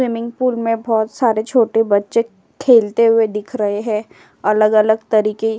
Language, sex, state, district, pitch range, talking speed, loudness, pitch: Hindi, female, Uttar Pradesh, Jyotiba Phule Nagar, 215-230 Hz, 160 wpm, -16 LUFS, 225 Hz